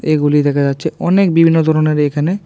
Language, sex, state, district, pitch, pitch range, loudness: Bengali, male, Tripura, West Tripura, 155 Hz, 145-165 Hz, -13 LUFS